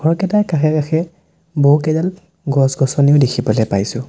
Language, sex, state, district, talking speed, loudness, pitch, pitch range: Assamese, male, Assam, Sonitpur, 115 wpm, -15 LUFS, 150 Hz, 135-165 Hz